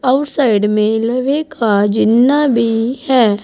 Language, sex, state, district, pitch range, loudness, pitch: Hindi, female, Uttar Pradesh, Saharanpur, 220-265 Hz, -14 LUFS, 235 Hz